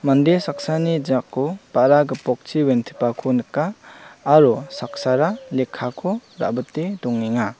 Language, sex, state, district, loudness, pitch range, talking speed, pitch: Garo, male, Meghalaya, South Garo Hills, -20 LUFS, 125-165 Hz, 95 wpm, 135 Hz